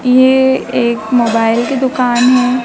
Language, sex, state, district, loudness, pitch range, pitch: Hindi, male, Madhya Pradesh, Dhar, -12 LUFS, 235-260 Hz, 250 Hz